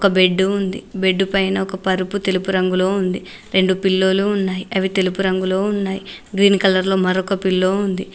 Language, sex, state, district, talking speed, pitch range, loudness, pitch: Telugu, female, Telangana, Mahabubabad, 170 wpm, 185-195 Hz, -18 LUFS, 190 Hz